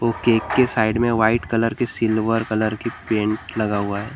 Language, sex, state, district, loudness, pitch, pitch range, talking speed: Hindi, male, Maharashtra, Gondia, -20 LUFS, 110 Hz, 110-115 Hz, 215 wpm